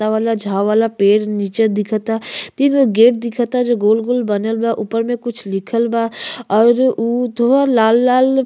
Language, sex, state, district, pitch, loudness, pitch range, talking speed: Bhojpuri, female, Uttar Pradesh, Ghazipur, 230 Hz, -16 LUFS, 215-245 Hz, 190 wpm